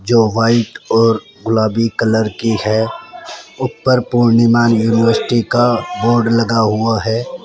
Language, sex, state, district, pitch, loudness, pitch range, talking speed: Hindi, male, Rajasthan, Jaipur, 115 Hz, -14 LUFS, 110-120 Hz, 120 wpm